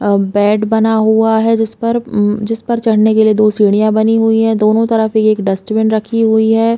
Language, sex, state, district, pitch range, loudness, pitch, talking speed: Hindi, female, Chhattisgarh, Bilaspur, 215-225 Hz, -12 LUFS, 220 Hz, 240 wpm